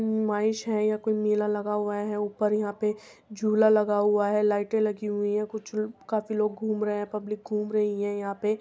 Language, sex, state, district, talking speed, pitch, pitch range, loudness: Hindi, female, Uttar Pradesh, Muzaffarnagar, 225 wpm, 210 Hz, 210-215 Hz, -27 LUFS